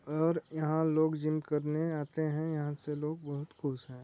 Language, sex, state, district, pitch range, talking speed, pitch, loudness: Hindi, male, Chhattisgarh, Sarguja, 150-160 Hz, 195 wpm, 155 Hz, -34 LUFS